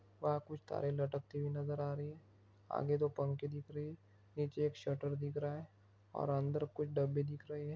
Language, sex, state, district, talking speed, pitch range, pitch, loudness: Hindi, male, Bihar, Begusarai, 215 wpm, 140-150 Hz, 145 Hz, -40 LUFS